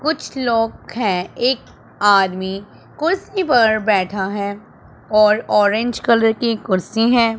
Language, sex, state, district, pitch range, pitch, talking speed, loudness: Hindi, male, Punjab, Pathankot, 200-240 Hz, 220 Hz, 120 wpm, -17 LUFS